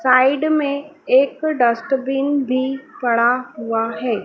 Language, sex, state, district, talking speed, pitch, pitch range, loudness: Hindi, female, Madhya Pradesh, Dhar, 115 wpm, 260 Hz, 240-280 Hz, -18 LUFS